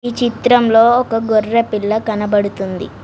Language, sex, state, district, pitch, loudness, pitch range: Telugu, female, Telangana, Mahabubabad, 225 Hz, -14 LUFS, 210-235 Hz